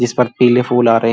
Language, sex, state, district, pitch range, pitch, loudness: Hindi, male, Uttar Pradesh, Muzaffarnagar, 115-125 Hz, 120 Hz, -13 LUFS